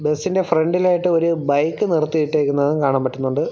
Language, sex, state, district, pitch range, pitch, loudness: Malayalam, male, Kerala, Thiruvananthapuram, 145-170 Hz, 155 Hz, -18 LUFS